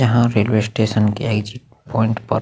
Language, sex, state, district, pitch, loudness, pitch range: Hindi, male, Chhattisgarh, Sukma, 110 Hz, -18 LUFS, 110-120 Hz